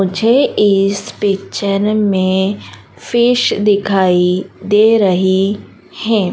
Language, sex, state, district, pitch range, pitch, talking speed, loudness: Hindi, female, Madhya Pradesh, Dhar, 190-215 Hz, 200 Hz, 85 wpm, -14 LUFS